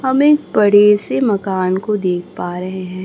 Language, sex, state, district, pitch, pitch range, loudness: Hindi, female, Chhattisgarh, Raipur, 200 Hz, 185-210 Hz, -15 LUFS